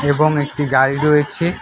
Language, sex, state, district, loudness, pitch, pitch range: Bengali, male, West Bengal, Alipurduar, -16 LUFS, 150 Hz, 145-150 Hz